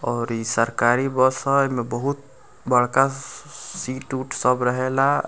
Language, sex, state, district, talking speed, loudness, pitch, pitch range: Bhojpuri, male, Bihar, Muzaffarpur, 150 wpm, -21 LUFS, 130 Hz, 120-135 Hz